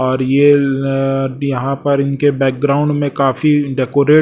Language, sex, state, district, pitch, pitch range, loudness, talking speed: Hindi, male, Chhattisgarh, Raipur, 140 Hz, 135-145 Hz, -14 LUFS, 155 wpm